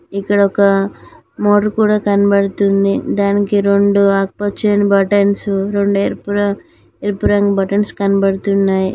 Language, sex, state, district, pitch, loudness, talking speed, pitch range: Telugu, female, Telangana, Mahabubabad, 200 Hz, -14 LUFS, 105 wpm, 195-205 Hz